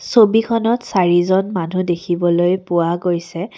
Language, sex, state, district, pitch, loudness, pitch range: Assamese, female, Assam, Kamrup Metropolitan, 180 Hz, -17 LUFS, 175-205 Hz